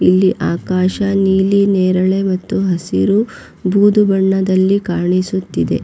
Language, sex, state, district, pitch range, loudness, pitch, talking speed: Kannada, female, Karnataka, Raichur, 185-195 Hz, -14 LUFS, 190 Hz, 90 wpm